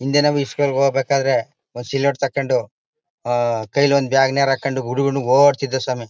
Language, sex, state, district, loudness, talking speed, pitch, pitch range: Kannada, male, Karnataka, Mysore, -18 LUFS, 155 wpm, 135 Hz, 130-140 Hz